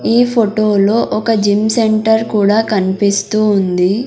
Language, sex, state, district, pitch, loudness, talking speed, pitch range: Telugu, female, Andhra Pradesh, Sri Satya Sai, 215 Hz, -13 LUFS, 135 wpm, 200-225 Hz